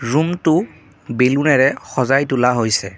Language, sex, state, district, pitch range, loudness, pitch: Assamese, male, Assam, Kamrup Metropolitan, 125-150 Hz, -16 LUFS, 130 Hz